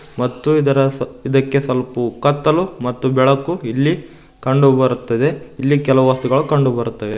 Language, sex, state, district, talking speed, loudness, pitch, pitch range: Kannada, male, Karnataka, Koppal, 135 wpm, -16 LUFS, 135 Hz, 125-145 Hz